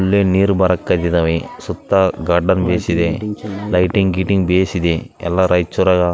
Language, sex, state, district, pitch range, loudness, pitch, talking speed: Kannada, male, Karnataka, Raichur, 85-100 Hz, -16 LUFS, 90 Hz, 115 wpm